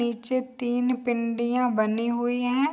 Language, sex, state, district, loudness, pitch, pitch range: Hindi, female, Bihar, Saharsa, -26 LUFS, 245 Hz, 235-250 Hz